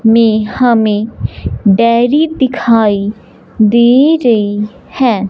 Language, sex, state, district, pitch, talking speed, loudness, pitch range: Hindi, male, Punjab, Fazilka, 230 Hz, 80 wpm, -11 LUFS, 210-245 Hz